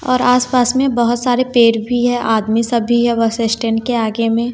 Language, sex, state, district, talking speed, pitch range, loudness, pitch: Hindi, female, Bihar, West Champaran, 235 wpm, 230-245 Hz, -15 LUFS, 235 Hz